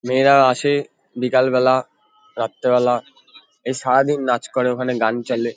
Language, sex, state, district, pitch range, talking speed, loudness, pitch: Bengali, male, West Bengal, Kolkata, 125-135 Hz, 120 wpm, -18 LUFS, 130 Hz